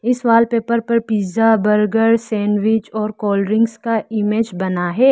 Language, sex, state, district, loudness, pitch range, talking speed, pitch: Hindi, female, Arunachal Pradesh, Lower Dibang Valley, -17 LUFS, 210-230 Hz, 150 wpm, 220 Hz